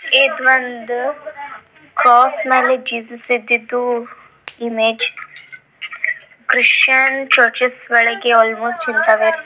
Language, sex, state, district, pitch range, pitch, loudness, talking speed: Kannada, female, Karnataka, Belgaum, 235-270 Hz, 250 Hz, -14 LUFS, 80 wpm